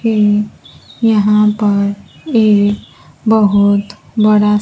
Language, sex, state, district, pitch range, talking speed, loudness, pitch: Hindi, female, Bihar, Kaimur, 205-215 Hz, 80 wpm, -13 LUFS, 210 Hz